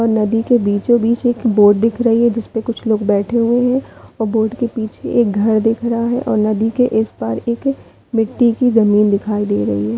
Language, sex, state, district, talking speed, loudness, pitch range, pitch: Hindi, female, Chhattisgarh, Bilaspur, 220 wpm, -16 LUFS, 215-235 Hz, 225 Hz